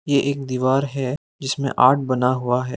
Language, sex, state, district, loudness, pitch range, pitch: Hindi, male, Arunachal Pradesh, Lower Dibang Valley, -20 LUFS, 130-140 Hz, 130 Hz